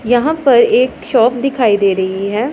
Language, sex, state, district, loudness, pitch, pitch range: Hindi, female, Punjab, Pathankot, -13 LUFS, 240 Hz, 210-255 Hz